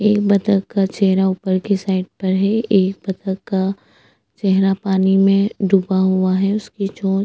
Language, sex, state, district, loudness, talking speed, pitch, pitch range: Hindi, female, Chhattisgarh, Sukma, -17 LUFS, 175 wpm, 195 Hz, 190-200 Hz